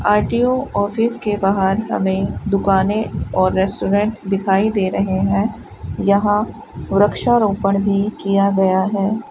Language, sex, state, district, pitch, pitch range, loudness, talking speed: Hindi, female, Rajasthan, Bikaner, 200 Hz, 195-210 Hz, -17 LUFS, 115 wpm